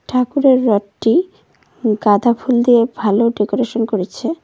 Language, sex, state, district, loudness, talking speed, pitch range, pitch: Bengali, female, West Bengal, Cooch Behar, -15 LUFS, 120 wpm, 210-250 Hz, 230 Hz